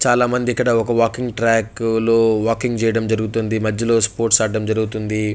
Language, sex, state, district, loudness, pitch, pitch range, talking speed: Telugu, male, Andhra Pradesh, Chittoor, -18 LUFS, 115 Hz, 110-115 Hz, 155 wpm